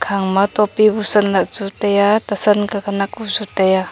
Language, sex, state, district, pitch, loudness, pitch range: Wancho, female, Arunachal Pradesh, Longding, 205 Hz, -16 LUFS, 200-210 Hz